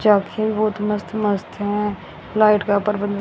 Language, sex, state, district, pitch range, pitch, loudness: Hindi, female, Haryana, Rohtak, 205-215 Hz, 210 Hz, -20 LUFS